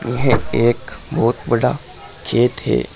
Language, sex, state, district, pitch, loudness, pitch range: Hindi, male, Uttar Pradesh, Saharanpur, 120 Hz, -18 LUFS, 110-120 Hz